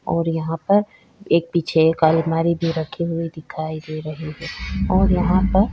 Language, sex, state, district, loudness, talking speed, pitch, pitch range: Hindi, female, Chhattisgarh, Sukma, -20 LUFS, 180 wpm, 165 Hz, 160-180 Hz